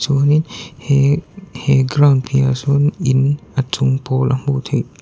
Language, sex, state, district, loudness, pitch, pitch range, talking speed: Mizo, male, Mizoram, Aizawl, -16 LUFS, 140 Hz, 130-145 Hz, 155 wpm